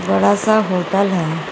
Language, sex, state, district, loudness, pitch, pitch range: Hindi, female, Jharkhand, Garhwa, -16 LUFS, 185 Hz, 160-200 Hz